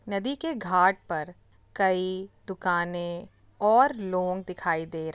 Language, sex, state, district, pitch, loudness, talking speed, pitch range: Hindi, female, Uttar Pradesh, Jyotiba Phule Nagar, 185 Hz, -27 LUFS, 140 wpm, 175-200 Hz